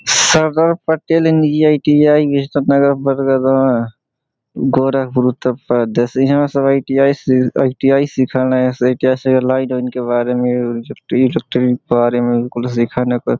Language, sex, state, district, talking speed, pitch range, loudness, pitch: Bhojpuri, male, Uttar Pradesh, Gorakhpur, 75 wpm, 125-140 Hz, -14 LUFS, 130 Hz